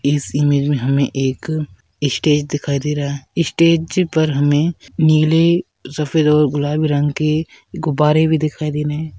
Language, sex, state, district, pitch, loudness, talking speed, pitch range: Hindi, male, Rajasthan, Churu, 150 Hz, -17 LUFS, 165 wpm, 145-160 Hz